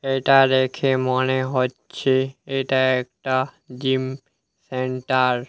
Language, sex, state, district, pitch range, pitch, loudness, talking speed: Bengali, male, West Bengal, Alipurduar, 130-135 Hz, 130 Hz, -21 LUFS, 100 wpm